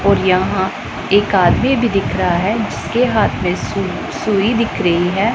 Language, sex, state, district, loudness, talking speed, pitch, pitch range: Hindi, female, Punjab, Pathankot, -16 LUFS, 180 wpm, 200 Hz, 185-230 Hz